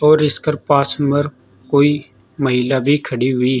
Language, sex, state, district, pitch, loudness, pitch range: Hindi, male, Uttar Pradesh, Saharanpur, 140 Hz, -16 LUFS, 125-145 Hz